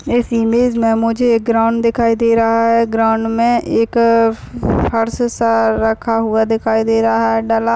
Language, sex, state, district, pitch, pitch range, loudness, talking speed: Hindi, female, Maharashtra, Chandrapur, 230 Hz, 225-230 Hz, -14 LUFS, 180 wpm